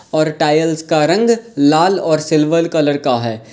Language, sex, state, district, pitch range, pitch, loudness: Hindi, male, Uttar Pradesh, Lalitpur, 150-165 Hz, 155 Hz, -14 LUFS